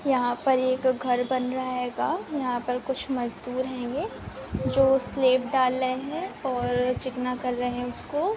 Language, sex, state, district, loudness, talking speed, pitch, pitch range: Hindi, female, Chhattisgarh, Bilaspur, -26 LUFS, 165 wpm, 255 Hz, 250-265 Hz